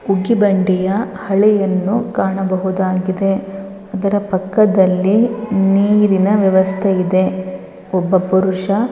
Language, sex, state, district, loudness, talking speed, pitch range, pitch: Kannada, female, Karnataka, Raichur, -15 LUFS, 75 wpm, 190-200 Hz, 195 Hz